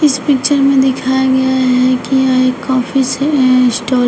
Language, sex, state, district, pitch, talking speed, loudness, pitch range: Hindi, female, Uttar Pradesh, Shamli, 260 Hz, 190 wpm, -12 LUFS, 255-270 Hz